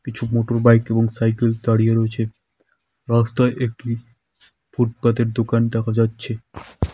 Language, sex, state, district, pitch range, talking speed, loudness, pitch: Bengali, male, West Bengal, Dakshin Dinajpur, 115-120 Hz, 105 wpm, -20 LUFS, 115 Hz